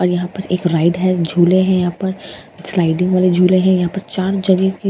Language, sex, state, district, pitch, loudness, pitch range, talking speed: Hindi, female, Bihar, Katihar, 185 Hz, -15 LUFS, 175-190 Hz, 245 wpm